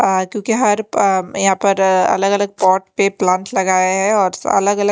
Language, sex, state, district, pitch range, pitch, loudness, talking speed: Hindi, female, Chandigarh, Chandigarh, 190-205 Hz, 195 Hz, -15 LUFS, 205 wpm